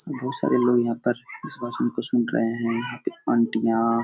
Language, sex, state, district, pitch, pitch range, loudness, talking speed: Hindi, male, Uttar Pradesh, Etah, 115 Hz, 115-120 Hz, -24 LUFS, 220 wpm